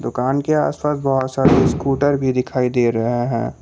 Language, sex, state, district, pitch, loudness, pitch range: Hindi, male, Jharkhand, Palamu, 130 Hz, -18 LUFS, 125-140 Hz